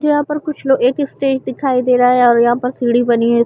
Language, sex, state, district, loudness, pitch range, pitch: Hindi, female, Chhattisgarh, Bilaspur, -14 LUFS, 240-275 Hz, 250 Hz